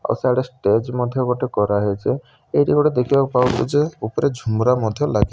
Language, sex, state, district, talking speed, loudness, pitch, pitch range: Odia, male, Odisha, Malkangiri, 190 wpm, -19 LUFS, 125 Hz, 110-130 Hz